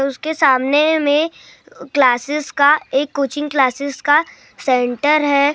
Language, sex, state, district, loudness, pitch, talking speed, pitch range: Hindi, male, Maharashtra, Gondia, -16 LUFS, 285 Hz, 140 wpm, 270-300 Hz